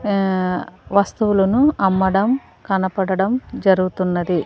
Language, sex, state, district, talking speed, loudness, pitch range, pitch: Telugu, female, Andhra Pradesh, Sri Satya Sai, 65 wpm, -18 LUFS, 185-205 Hz, 195 Hz